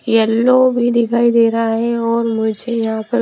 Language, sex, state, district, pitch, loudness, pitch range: Hindi, female, Himachal Pradesh, Shimla, 230 Hz, -15 LUFS, 225-235 Hz